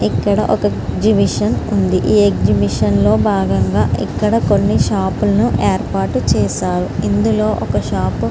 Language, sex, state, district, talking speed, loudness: Telugu, female, Andhra Pradesh, Srikakulam, 125 wpm, -15 LUFS